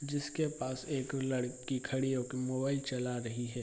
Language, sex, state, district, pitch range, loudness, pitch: Hindi, male, Bihar, Bhagalpur, 125-140 Hz, -36 LUFS, 130 Hz